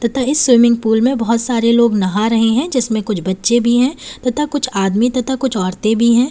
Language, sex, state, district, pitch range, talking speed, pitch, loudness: Hindi, female, Uttar Pradesh, Lalitpur, 220-255 Hz, 210 wpm, 235 Hz, -15 LUFS